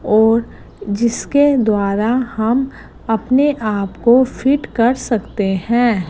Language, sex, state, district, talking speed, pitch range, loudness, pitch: Hindi, female, Gujarat, Gandhinagar, 110 wpm, 215-255 Hz, -16 LUFS, 230 Hz